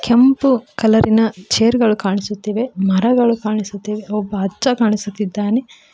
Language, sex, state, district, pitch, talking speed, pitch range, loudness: Kannada, female, Karnataka, Koppal, 215 Hz, 100 wpm, 205-235 Hz, -17 LUFS